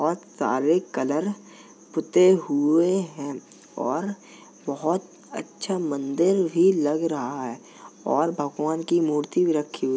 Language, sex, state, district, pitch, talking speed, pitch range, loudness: Hindi, male, Uttar Pradesh, Jalaun, 160 Hz, 130 wpm, 145-180 Hz, -24 LUFS